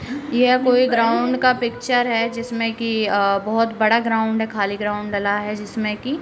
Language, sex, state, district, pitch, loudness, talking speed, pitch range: Hindi, female, Uttar Pradesh, Deoria, 230 Hz, -19 LUFS, 195 wpm, 210-245 Hz